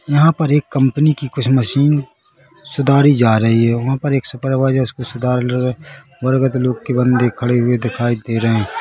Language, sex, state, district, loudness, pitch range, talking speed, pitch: Hindi, male, Chhattisgarh, Rajnandgaon, -16 LUFS, 120-140 Hz, 175 wpm, 130 Hz